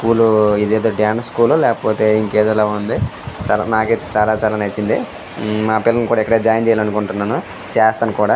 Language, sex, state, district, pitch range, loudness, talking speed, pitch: Telugu, male, Andhra Pradesh, Srikakulam, 105-115 Hz, -16 LUFS, 145 wpm, 110 Hz